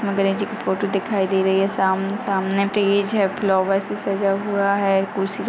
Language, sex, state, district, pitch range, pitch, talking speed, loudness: Hindi, female, Rajasthan, Nagaur, 195-200 Hz, 195 Hz, 185 wpm, -20 LUFS